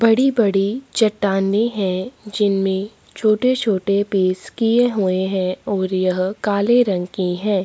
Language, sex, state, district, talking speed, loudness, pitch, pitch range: Hindi, female, Chhattisgarh, Sukma, 115 wpm, -19 LUFS, 200 Hz, 190-220 Hz